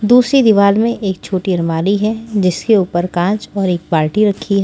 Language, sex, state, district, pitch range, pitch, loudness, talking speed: Hindi, female, Maharashtra, Washim, 180-215 Hz, 200 Hz, -14 LUFS, 195 wpm